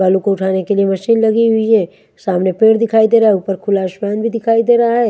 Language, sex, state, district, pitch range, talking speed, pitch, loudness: Hindi, female, Haryana, Charkhi Dadri, 195-230 Hz, 270 wpm, 215 Hz, -13 LUFS